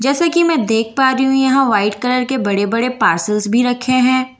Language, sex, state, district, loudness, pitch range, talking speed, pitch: Hindi, female, Bihar, Katihar, -15 LUFS, 225-265 Hz, 220 wpm, 255 Hz